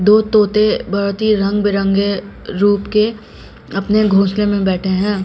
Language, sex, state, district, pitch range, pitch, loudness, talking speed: Hindi, female, Bihar, Patna, 195-210 Hz, 205 Hz, -15 LUFS, 150 wpm